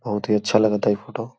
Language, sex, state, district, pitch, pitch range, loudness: Bhojpuri, male, Uttar Pradesh, Gorakhpur, 105 Hz, 105-115 Hz, -21 LUFS